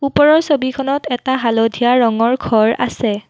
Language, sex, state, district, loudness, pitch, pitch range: Assamese, female, Assam, Kamrup Metropolitan, -15 LUFS, 250 Hz, 225-270 Hz